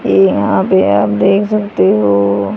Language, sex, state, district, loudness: Hindi, female, Haryana, Charkhi Dadri, -12 LUFS